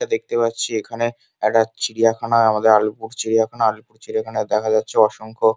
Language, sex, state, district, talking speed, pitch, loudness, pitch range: Bengali, male, West Bengal, Kolkata, 150 wpm, 110 Hz, -19 LUFS, 110-115 Hz